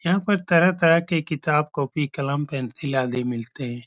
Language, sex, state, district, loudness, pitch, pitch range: Hindi, male, Uttar Pradesh, Etah, -23 LUFS, 145 Hz, 130-165 Hz